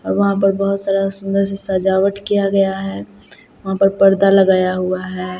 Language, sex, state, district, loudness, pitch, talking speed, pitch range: Hindi, female, Bihar, Katihar, -16 LUFS, 195 Hz, 190 wpm, 185-195 Hz